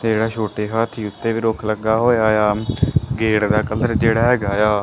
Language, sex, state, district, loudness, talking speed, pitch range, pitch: Punjabi, male, Punjab, Kapurthala, -18 LUFS, 200 wpm, 105-115 Hz, 110 Hz